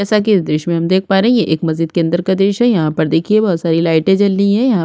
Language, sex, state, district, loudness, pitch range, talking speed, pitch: Hindi, female, Chhattisgarh, Sukma, -14 LUFS, 165-205 Hz, 360 wpm, 190 Hz